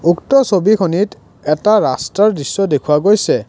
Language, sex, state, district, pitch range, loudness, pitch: Assamese, male, Assam, Kamrup Metropolitan, 155-210 Hz, -14 LUFS, 195 Hz